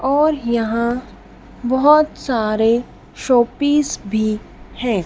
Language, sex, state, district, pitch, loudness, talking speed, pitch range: Hindi, female, Madhya Pradesh, Dhar, 240 Hz, -18 LUFS, 85 wpm, 225-280 Hz